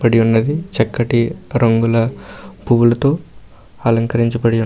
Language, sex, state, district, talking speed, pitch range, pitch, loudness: Telugu, male, Karnataka, Bellary, 105 wpm, 115-120 Hz, 115 Hz, -16 LUFS